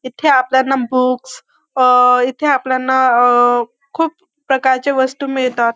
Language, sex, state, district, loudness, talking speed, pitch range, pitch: Marathi, female, Maharashtra, Dhule, -14 LUFS, 115 wpm, 250-275 Hz, 260 Hz